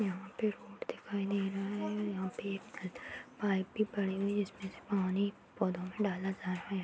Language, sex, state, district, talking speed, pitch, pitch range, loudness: Hindi, female, Uttar Pradesh, Hamirpur, 210 wpm, 200 Hz, 190-210 Hz, -37 LUFS